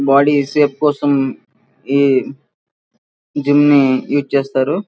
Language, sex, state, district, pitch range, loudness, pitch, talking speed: Telugu, male, Andhra Pradesh, Srikakulam, 135-145 Hz, -14 LUFS, 140 Hz, 100 wpm